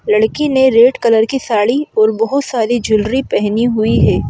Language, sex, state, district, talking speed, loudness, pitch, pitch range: Hindi, female, Madhya Pradesh, Bhopal, 180 wpm, -13 LUFS, 230 Hz, 220-265 Hz